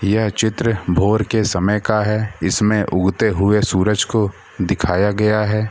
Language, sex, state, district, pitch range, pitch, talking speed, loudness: Hindi, male, Bihar, Gaya, 95-110 Hz, 105 Hz, 155 wpm, -17 LUFS